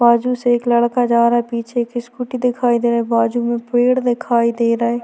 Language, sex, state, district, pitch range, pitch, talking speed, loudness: Hindi, female, Chhattisgarh, Korba, 235-245 Hz, 240 Hz, 235 wpm, -17 LUFS